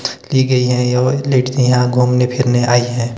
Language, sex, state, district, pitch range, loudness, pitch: Hindi, male, Himachal Pradesh, Shimla, 125-130 Hz, -14 LUFS, 125 Hz